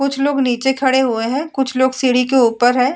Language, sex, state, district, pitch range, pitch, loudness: Hindi, female, Uttar Pradesh, Etah, 250-270 Hz, 260 Hz, -16 LUFS